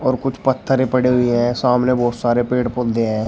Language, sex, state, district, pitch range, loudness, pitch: Hindi, male, Uttar Pradesh, Shamli, 120-130 Hz, -17 LUFS, 125 Hz